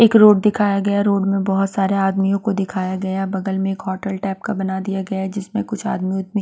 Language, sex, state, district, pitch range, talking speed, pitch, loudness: Hindi, female, Punjab, Pathankot, 190-200 Hz, 245 wpm, 195 Hz, -19 LUFS